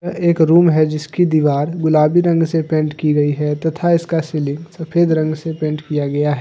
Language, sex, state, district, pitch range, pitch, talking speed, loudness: Hindi, male, Jharkhand, Deoghar, 150-165 Hz, 155 Hz, 205 wpm, -16 LUFS